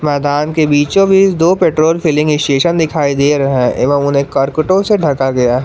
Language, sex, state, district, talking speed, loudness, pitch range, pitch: Hindi, male, Jharkhand, Garhwa, 190 wpm, -12 LUFS, 140-165 Hz, 150 Hz